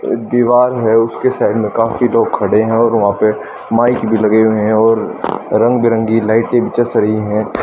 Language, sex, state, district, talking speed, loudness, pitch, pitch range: Hindi, male, Haryana, Charkhi Dadri, 195 wpm, -13 LUFS, 115 Hz, 110-120 Hz